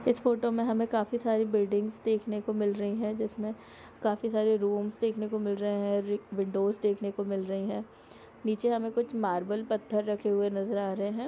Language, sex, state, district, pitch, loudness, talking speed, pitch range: Hindi, female, Bihar, Sitamarhi, 210 Hz, -30 LUFS, 145 wpm, 200-220 Hz